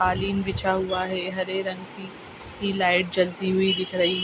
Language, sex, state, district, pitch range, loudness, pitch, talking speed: Hindi, female, Bihar, Araria, 185-190 Hz, -24 LUFS, 185 Hz, 185 wpm